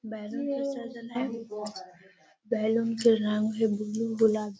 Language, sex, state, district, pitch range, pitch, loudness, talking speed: Magahi, female, Bihar, Gaya, 210-235 Hz, 220 Hz, -29 LUFS, 155 wpm